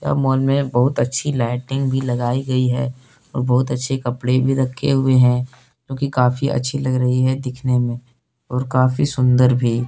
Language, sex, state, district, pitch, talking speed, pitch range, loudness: Hindi, male, Jharkhand, Deoghar, 130 Hz, 180 wpm, 125-135 Hz, -18 LUFS